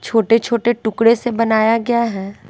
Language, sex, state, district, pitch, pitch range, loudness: Hindi, female, Bihar, West Champaran, 230 Hz, 220-235 Hz, -16 LUFS